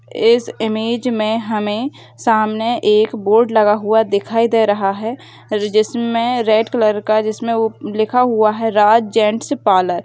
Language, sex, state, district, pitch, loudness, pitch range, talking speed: Hindi, female, Bihar, Begusarai, 220 Hz, -16 LUFS, 215-230 Hz, 155 wpm